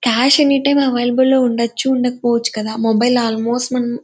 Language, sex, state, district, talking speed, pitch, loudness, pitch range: Telugu, female, Andhra Pradesh, Anantapur, 180 wpm, 245 Hz, -15 LUFS, 235-260 Hz